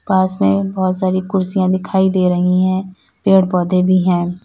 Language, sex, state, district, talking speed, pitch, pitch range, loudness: Hindi, female, Uttar Pradesh, Lalitpur, 175 wpm, 185 Hz, 180-190 Hz, -15 LUFS